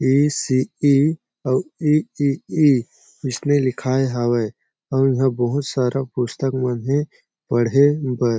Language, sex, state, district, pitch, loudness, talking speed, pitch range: Chhattisgarhi, male, Chhattisgarh, Jashpur, 135 Hz, -20 LUFS, 145 wpm, 125-145 Hz